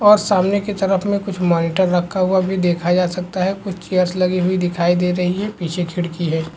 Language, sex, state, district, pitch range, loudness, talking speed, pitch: Hindi, male, Bihar, Supaul, 175-190 Hz, -18 LUFS, 230 wpm, 180 Hz